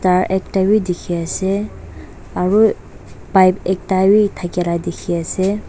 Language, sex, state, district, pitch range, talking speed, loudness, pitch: Nagamese, female, Nagaland, Dimapur, 180-195 Hz, 125 wpm, -17 LUFS, 190 Hz